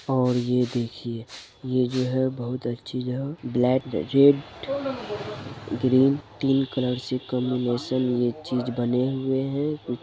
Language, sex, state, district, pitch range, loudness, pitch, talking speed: Hindi, male, Bihar, Purnia, 125-135 Hz, -25 LUFS, 130 Hz, 120 wpm